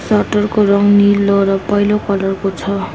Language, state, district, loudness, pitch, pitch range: Nepali, West Bengal, Darjeeling, -14 LUFS, 200 Hz, 195-205 Hz